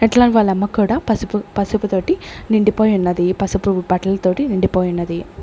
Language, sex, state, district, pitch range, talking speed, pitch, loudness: Telugu, female, Andhra Pradesh, Sri Satya Sai, 185-220 Hz, 155 wpm, 200 Hz, -17 LUFS